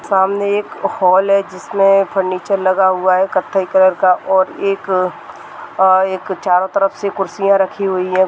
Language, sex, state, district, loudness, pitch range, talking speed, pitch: Hindi, male, Rajasthan, Churu, -15 LUFS, 185-195 Hz, 165 wpm, 190 Hz